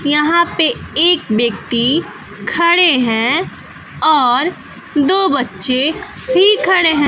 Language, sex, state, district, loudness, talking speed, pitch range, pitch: Hindi, female, Bihar, West Champaran, -13 LUFS, 100 wpm, 255-350 Hz, 310 Hz